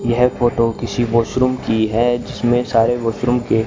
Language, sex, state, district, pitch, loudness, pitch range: Hindi, male, Haryana, Charkhi Dadri, 120 Hz, -17 LUFS, 115-125 Hz